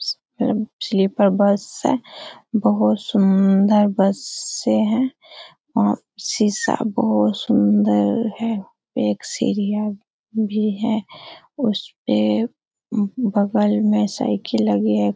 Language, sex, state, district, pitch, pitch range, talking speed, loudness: Hindi, female, Bihar, Darbhanga, 210 Hz, 190-225 Hz, 85 wpm, -20 LUFS